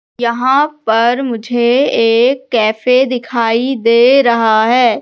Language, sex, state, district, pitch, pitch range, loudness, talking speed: Hindi, female, Madhya Pradesh, Katni, 240 Hz, 230-260 Hz, -12 LUFS, 105 wpm